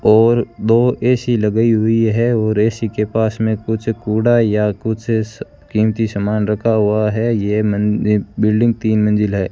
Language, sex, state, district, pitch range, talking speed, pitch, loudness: Hindi, male, Rajasthan, Bikaner, 105-115 Hz, 165 wpm, 110 Hz, -16 LUFS